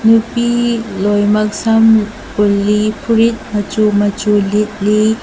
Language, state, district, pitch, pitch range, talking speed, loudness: Manipuri, Manipur, Imphal West, 210 Hz, 205-225 Hz, 90 wpm, -13 LUFS